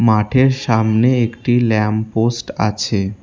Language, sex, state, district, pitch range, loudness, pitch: Bengali, male, West Bengal, Alipurduar, 110-120 Hz, -16 LUFS, 110 Hz